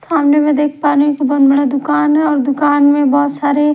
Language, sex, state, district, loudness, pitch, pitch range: Hindi, female, Bihar, Patna, -13 LUFS, 290 Hz, 285-295 Hz